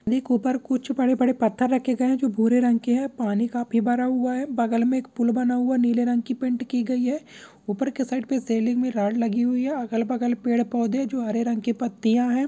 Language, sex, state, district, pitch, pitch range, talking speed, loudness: Hindi, male, Bihar, Purnia, 245 Hz, 235-255 Hz, 230 wpm, -23 LUFS